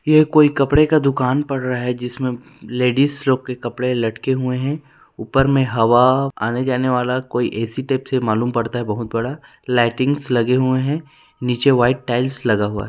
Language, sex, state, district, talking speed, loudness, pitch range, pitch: Hindi, male, Chhattisgarh, Rajnandgaon, 195 wpm, -18 LUFS, 120-135 Hz, 125 Hz